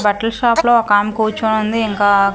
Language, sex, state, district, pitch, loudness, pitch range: Telugu, female, Andhra Pradesh, Manyam, 220 Hz, -15 LUFS, 205-225 Hz